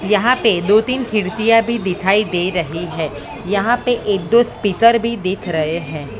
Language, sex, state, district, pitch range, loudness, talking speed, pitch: Hindi, female, Maharashtra, Mumbai Suburban, 175-230 Hz, -16 LUFS, 185 wpm, 205 Hz